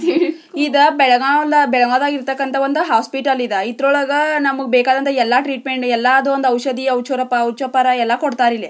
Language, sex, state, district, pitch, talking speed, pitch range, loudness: Kannada, female, Karnataka, Belgaum, 270 Hz, 145 wpm, 250-285 Hz, -16 LUFS